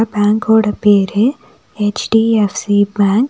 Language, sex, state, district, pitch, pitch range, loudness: Tamil, female, Tamil Nadu, Nilgiris, 210 Hz, 205-225 Hz, -14 LUFS